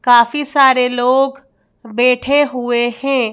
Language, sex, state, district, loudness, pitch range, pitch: Hindi, female, Madhya Pradesh, Bhopal, -14 LUFS, 245-275 Hz, 250 Hz